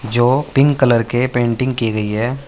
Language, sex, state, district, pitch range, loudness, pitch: Hindi, male, Uttar Pradesh, Saharanpur, 115-130 Hz, -16 LUFS, 120 Hz